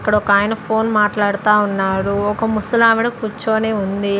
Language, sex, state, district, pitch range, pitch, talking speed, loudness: Telugu, female, Andhra Pradesh, Sri Satya Sai, 200-220 Hz, 210 Hz, 130 wpm, -16 LUFS